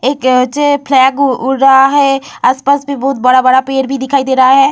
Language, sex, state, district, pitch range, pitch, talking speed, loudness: Hindi, female, Bihar, Vaishali, 260-275 Hz, 270 Hz, 215 wpm, -10 LUFS